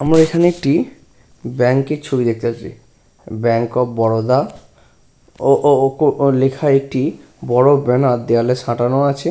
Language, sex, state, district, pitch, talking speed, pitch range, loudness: Bengali, male, West Bengal, Purulia, 130 Hz, 135 wpm, 120-140 Hz, -16 LUFS